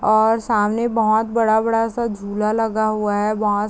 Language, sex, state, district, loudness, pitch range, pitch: Hindi, female, Chhattisgarh, Raigarh, -19 LUFS, 210-225 Hz, 220 Hz